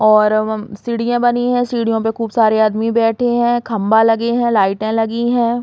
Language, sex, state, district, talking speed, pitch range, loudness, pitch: Bundeli, female, Uttar Pradesh, Hamirpur, 190 wpm, 220-240 Hz, -15 LUFS, 225 Hz